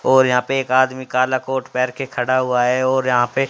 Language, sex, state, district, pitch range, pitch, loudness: Hindi, female, Haryana, Jhajjar, 125-130 Hz, 130 Hz, -18 LUFS